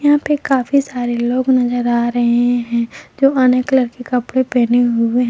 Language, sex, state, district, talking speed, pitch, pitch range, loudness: Hindi, female, Jharkhand, Palamu, 190 wpm, 245 Hz, 240-260 Hz, -15 LUFS